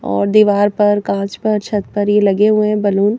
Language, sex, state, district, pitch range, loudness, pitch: Hindi, female, Madhya Pradesh, Bhopal, 200-210 Hz, -14 LUFS, 205 Hz